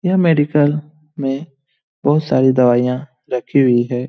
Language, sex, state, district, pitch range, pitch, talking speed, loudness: Hindi, male, Bihar, Lakhisarai, 125-150 Hz, 140 Hz, 130 wpm, -16 LUFS